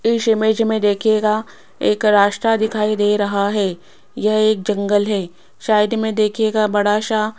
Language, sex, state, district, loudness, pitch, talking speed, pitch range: Hindi, female, Rajasthan, Jaipur, -17 LUFS, 215 Hz, 155 wpm, 205-220 Hz